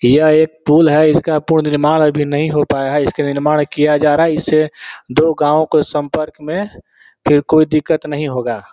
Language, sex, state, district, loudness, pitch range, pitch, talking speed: Hindi, male, Bihar, Vaishali, -14 LUFS, 145-155 Hz, 150 Hz, 200 wpm